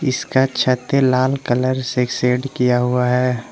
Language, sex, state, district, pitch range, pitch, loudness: Hindi, male, Arunachal Pradesh, Lower Dibang Valley, 125-130 Hz, 125 Hz, -18 LUFS